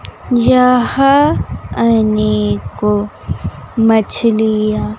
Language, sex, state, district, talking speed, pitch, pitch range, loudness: Hindi, female, Bihar, West Champaran, 60 wpm, 220 Hz, 210-245 Hz, -13 LUFS